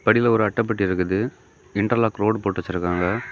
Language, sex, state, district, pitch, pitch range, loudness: Tamil, male, Tamil Nadu, Kanyakumari, 105 Hz, 95-115 Hz, -22 LUFS